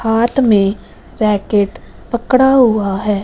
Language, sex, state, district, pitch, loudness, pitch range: Hindi, female, Punjab, Fazilka, 215 Hz, -14 LUFS, 205-245 Hz